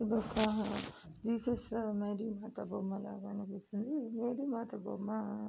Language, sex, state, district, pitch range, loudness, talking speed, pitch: Telugu, female, Andhra Pradesh, Srikakulam, 205-230 Hz, -38 LUFS, 100 wpm, 215 Hz